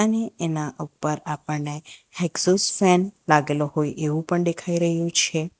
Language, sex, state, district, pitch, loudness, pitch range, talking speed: Gujarati, female, Gujarat, Valsad, 165 Hz, -23 LUFS, 150-180 Hz, 130 wpm